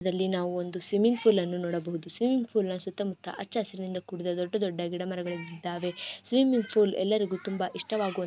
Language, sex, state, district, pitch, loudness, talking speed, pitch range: Kannada, female, Karnataka, Gulbarga, 185 Hz, -29 LUFS, 180 wpm, 180-210 Hz